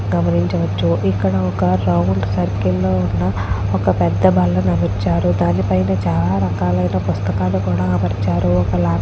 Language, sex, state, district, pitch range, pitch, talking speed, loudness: Telugu, female, Andhra Pradesh, Chittoor, 90-95 Hz, 90 Hz, 160 wpm, -17 LUFS